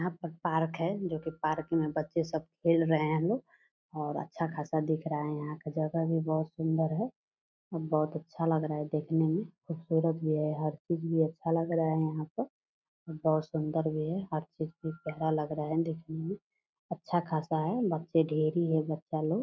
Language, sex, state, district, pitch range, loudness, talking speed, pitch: Hindi, female, Bihar, Purnia, 155-165 Hz, -32 LUFS, 205 wpm, 160 Hz